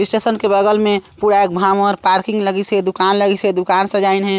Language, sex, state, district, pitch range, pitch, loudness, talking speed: Chhattisgarhi, male, Chhattisgarh, Sarguja, 195-205 Hz, 200 Hz, -15 LUFS, 190 wpm